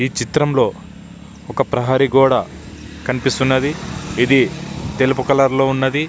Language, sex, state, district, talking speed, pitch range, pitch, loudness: Telugu, male, Andhra Pradesh, Visakhapatnam, 110 wpm, 130-140 Hz, 135 Hz, -17 LUFS